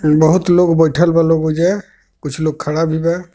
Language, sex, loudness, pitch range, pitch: Bhojpuri, male, -14 LUFS, 155-175 Hz, 165 Hz